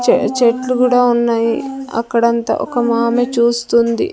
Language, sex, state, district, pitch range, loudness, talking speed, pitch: Telugu, female, Andhra Pradesh, Sri Satya Sai, 235-250 Hz, -15 LUFS, 130 wpm, 235 Hz